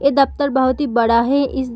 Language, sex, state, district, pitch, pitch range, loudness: Hindi, female, Bihar, Samastipur, 265 Hz, 250-280 Hz, -16 LUFS